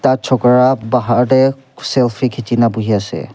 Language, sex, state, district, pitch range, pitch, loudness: Nagamese, male, Nagaland, Kohima, 115-130 Hz, 125 Hz, -14 LUFS